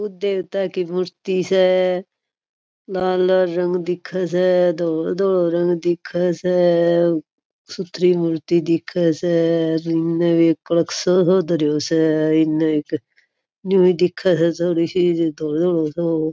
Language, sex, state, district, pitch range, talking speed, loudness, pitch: Marwari, female, Rajasthan, Churu, 165-185 Hz, 75 wpm, -19 LUFS, 175 Hz